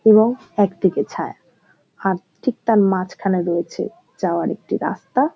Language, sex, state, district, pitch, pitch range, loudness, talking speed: Bengali, female, West Bengal, North 24 Parganas, 200 Hz, 185-230 Hz, -20 LUFS, 125 wpm